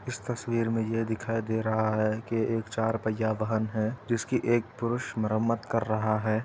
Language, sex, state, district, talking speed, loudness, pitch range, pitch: Hindi, male, Uttar Pradesh, Etah, 195 wpm, -29 LUFS, 110-115 Hz, 110 Hz